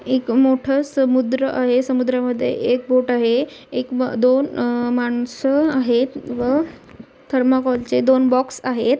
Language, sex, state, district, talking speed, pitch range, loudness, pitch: Marathi, female, Maharashtra, Sindhudurg, 140 wpm, 245-265 Hz, -18 LUFS, 255 Hz